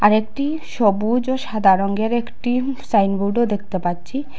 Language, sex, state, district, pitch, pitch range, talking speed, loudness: Bengali, female, Assam, Hailakandi, 220 Hz, 200-255 Hz, 135 wpm, -20 LUFS